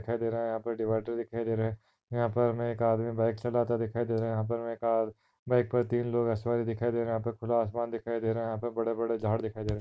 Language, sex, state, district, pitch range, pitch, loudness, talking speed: Hindi, male, Maharashtra, Nagpur, 115-120 Hz, 115 Hz, -31 LUFS, 285 wpm